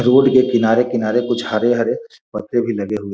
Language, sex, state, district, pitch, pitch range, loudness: Hindi, male, Bihar, Gopalganj, 120 Hz, 110-130 Hz, -17 LUFS